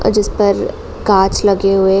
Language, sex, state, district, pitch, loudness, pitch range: Hindi, female, Uttar Pradesh, Jalaun, 195 Hz, -14 LUFS, 195-205 Hz